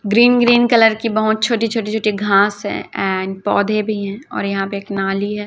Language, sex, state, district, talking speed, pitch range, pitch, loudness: Hindi, female, Chhattisgarh, Raipur, 230 wpm, 200-225 Hz, 210 Hz, -16 LUFS